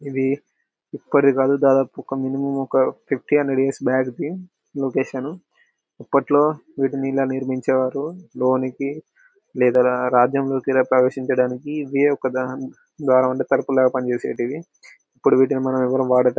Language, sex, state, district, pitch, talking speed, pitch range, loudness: Telugu, male, Telangana, Karimnagar, 135 Hz, 140 wpm, 130-140 Hz, -20 LUFS